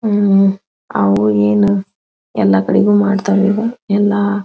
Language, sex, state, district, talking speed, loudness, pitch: Kannada, female, Karnataka, Belgaum, 120 wpm, -14 LUFS, 200 Hz